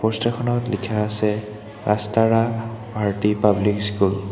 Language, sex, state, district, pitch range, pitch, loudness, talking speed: Assamese, male, Assam, Hailakandi, 105-115 Hz, 105 Hz, -20 LUFS, 125 wpm